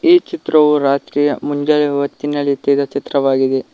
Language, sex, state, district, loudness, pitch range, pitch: Kannada, male, Karnataka, Koppal, -15 LUFS, 140-150 Hz, 145 Hz